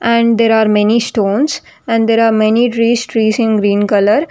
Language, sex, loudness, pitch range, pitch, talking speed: English, female, -12 LUFS, 215-235 Hz, 225 Hz, 195 wpm